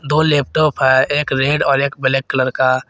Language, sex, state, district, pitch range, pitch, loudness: Hindi, male, Jharkhand, Garhwa, 130-145 Hz, 135 Hz, -15 LUFS